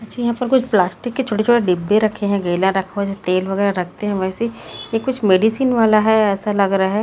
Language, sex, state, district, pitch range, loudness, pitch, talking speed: Hindi, female, Chhattisgarh, Raipur, 195-225 Hz, -18 LUFS, 210 Hz, 230 wpm